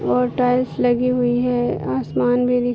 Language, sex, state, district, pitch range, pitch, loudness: Hindi, female, Jharkhand, Jamtara, 245-250 Hz, 245 Hz, -19 LUFS